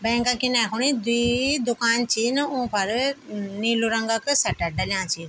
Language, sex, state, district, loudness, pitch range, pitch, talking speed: Garhwali, female, Uttarakhand, Tehri Garhwal, -23 LUFS, 225-255 Hz, 235 Hz, 160 wpm